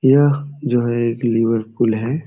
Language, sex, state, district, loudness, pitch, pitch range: Hindi, male, Bihar, Jamui, -18 LUFS, 120 Hz, 115-140 Hz